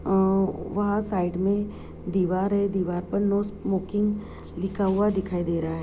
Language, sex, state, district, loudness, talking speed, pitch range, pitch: Hindi, female, Bihar, Purnia, -26 LUFS, 165 wpm, 185-205 Hz, 195 Hz